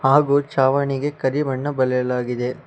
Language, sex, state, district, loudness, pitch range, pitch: Kannada, male, Karnataka, Bangalore, -20 LUFS, 130-145 Hz, 135 Hz